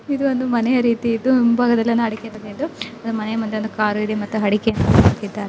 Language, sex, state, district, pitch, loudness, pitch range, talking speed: Kannada, female, Karnataka, Chamarajanagar, 225 Hz, -19 LUFS, 215-240 Hz, 195 wpm